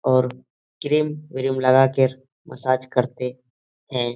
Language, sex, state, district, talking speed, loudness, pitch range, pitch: Hindi, male, Bihar, Jahanabad, 115 wpm, -21 LUFS, 125-135 Hz, 130 Hz